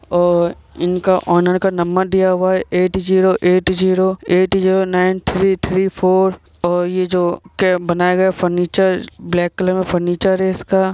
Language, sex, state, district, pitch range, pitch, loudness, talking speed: Hindi, male, Bihar, Gopalganj, 180-190 Hz, 185 Hz, -16 LUFS, 175 wpm